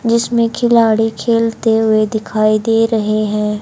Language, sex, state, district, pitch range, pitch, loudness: Hindi, male, Haryana, Jhajjar, 215-230 Hz, 225 Hz, -14 LUFS